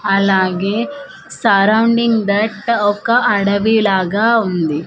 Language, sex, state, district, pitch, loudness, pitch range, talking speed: Telugu, female, Andhra Pradesh, Manyam, 205 Hz, -14 LUFS, 195-230 Hz, 85 wpm